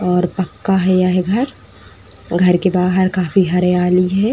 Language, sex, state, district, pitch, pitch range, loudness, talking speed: Hindi, female, Uttar Pradesh, Etah, 180 Hz, 180-185 Hz, -15 LUFS, 150 wpm